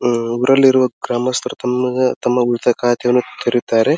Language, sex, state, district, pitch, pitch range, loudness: Kannada, male, Karnataka, Dharwad, 125 Hz, 120-125 Hz, -16 LUFS